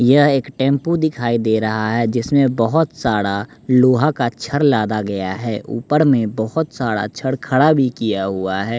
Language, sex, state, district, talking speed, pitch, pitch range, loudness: Hindi, male, Bihar, West Champaran, 180 wpm, 120 Hz, 110-140 Hz, -17 LUFS